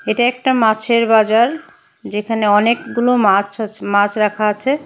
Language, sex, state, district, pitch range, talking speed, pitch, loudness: Bengali, female, Assam, Hailakandi, 210-245 Hz, 135 wpm, 225 Hz, -15 LUFS